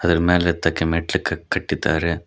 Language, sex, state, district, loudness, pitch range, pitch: Kannada, male, Karnataka, Koppal, -20 LUFS, 80-85 Hz, 85 Hz